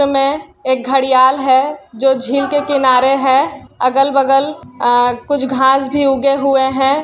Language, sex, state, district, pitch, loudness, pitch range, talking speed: Hindi, female, Bihar, Kishanganj, 270 Hz, -13 LUFS, 260-275 Hz, 155 wpm